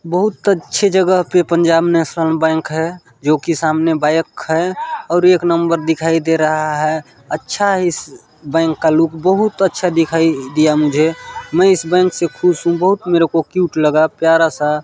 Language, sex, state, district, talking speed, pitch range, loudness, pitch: Hindi, male, Chhattisgarh, Balrampur, 175 wpm, 160-180 Hz, -15 LUFS, 165 Hz